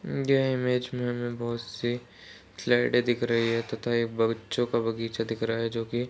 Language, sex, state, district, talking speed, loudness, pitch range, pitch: Hindi, male, Uttar Pradesh, Jalaun, 205 wpm, -28 LUFS, 115-120 Hz, 120 Hz